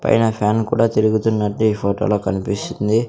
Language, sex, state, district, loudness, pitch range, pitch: Telugu, male, Andhra Pradesh, Sri Satya Sai, -18 LUFS, 105-110 Hz, 110 Hz